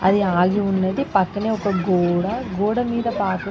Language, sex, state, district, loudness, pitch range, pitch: Telugu, female, Andhra Pradesh, Krishna, -20 LUFS, 185-220 Hz, 195 Hz